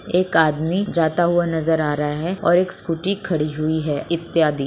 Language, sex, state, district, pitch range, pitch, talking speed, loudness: Hindi, female, Jharkhand, Sahebganj, 155-175 Hz, 165 Hz, 190 wpm, -20 LUFS